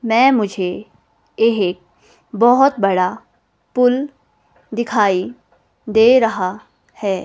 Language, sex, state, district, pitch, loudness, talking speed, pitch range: Hindi, female, Himachal Pradesh, Shimla, 215 Hz, -16 LUFS, 85 wpm, 185-245 Hz